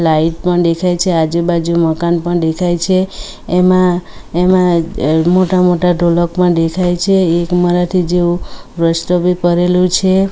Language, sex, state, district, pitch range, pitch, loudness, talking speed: Gujarati, female, Gujarat, Valsad, 170-180 Hz, 175 Hz, -13 LUFS, 140 wpm